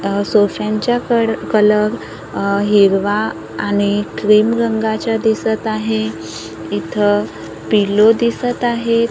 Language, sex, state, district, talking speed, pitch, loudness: Marathi, female, Maharashtra, Gondia, 100 wpm, 205 Hz, -16 LUFS